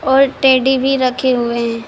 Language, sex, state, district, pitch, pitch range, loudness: Hindi, female, Bihar, Supaul, 260 Hz, 240-265 Hz, -14 LUFS